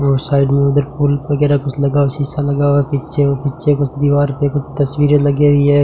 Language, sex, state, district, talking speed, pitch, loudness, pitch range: Hindi, male, Rajasthan, Bikaner, 245 wpm, 145 Hz, -15 LUFS, 140-145 Hz